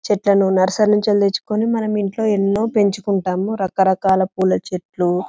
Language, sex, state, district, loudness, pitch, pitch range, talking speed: Telugu, female, Telangana, Karimnagar, -18 LUFS, 200 Hz, 190-210 Hz, 125 wpm